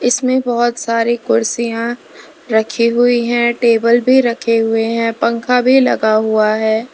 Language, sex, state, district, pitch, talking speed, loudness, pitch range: Hindi, female, Uttar Pradesh, Lalitpur, 235 Hz, 145 wpm, -14 LUFS, 230-245 Hz